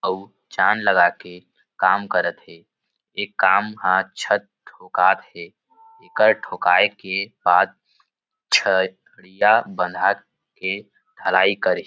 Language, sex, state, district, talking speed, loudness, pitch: Chhattisgarhi, male, Chhattisgarh, Rajnandgaon, 115 wpm, -20 LUFS, 110 Hz